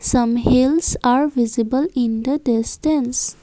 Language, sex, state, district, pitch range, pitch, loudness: English, female, Assam, Kamrup Metropolitan, 235-280 Hz, 250 Hz, -18 LUFS